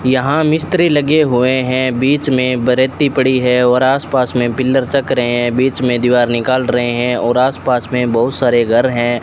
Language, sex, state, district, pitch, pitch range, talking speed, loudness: Hindi, male, Rajasthan, Bikaner, 130 Hz, 125-135 Hz, 210 wpm, -14 LUFS